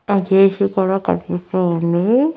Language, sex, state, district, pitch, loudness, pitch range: Telugu, female, Andhra Pradesh, Annamaya, 195 Hz, -17 LUFS, 180-200 Hz